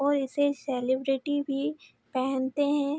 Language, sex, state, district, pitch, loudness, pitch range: Hindi, female, Bihar, Araria, 280 Hz, -28 LUFS, 265-285 Hz